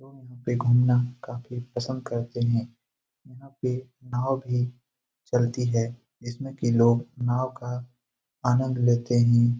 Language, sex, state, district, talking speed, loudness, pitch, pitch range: Hindi, male, Bihar, Lakhisarai, 135 wpm, -26 LUFS, 125 Hz, 120-130 Hz